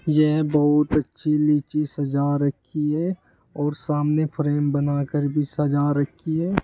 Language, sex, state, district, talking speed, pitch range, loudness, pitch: Hindi, male, Uttar Pradesh, Saharanpur, 135 wpm, 145-155 Hz, -22 LUFS, 150 Hz